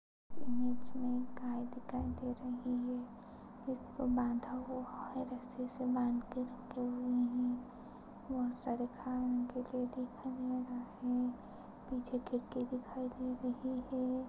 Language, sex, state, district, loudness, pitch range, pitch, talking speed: Hindi, female, Maharashtra, Pune, -39 LUFS, 245-255 Hz, 250 Hz, 135 wpm